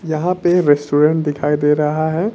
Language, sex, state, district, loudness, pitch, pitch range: Hindi, male, Bihar, Kaimur, -16 LUFS, 155 Hz, 150-175 Hz